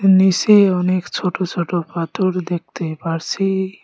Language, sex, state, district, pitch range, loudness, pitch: Bengali, male, West Bengal, Cooch Behar, 175-190 Hz, -18 LUFS, 180 Hz